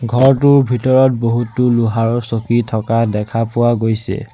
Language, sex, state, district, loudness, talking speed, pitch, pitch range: Assamese, male, Assam, Sonitpur, -15 LUFS, 125 wpm, 120 Hz, 115-125 Hz